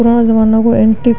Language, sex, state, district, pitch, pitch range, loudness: Marwari, female, Rajasthan, Nagaur, 225 Hz, 220-235 Hz, -10 LUFS